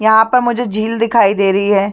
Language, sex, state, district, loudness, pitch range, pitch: Hindi, female, Chhattisgarh, Sarguja, -13 LUFS, 200-235 Hz, 220 Hz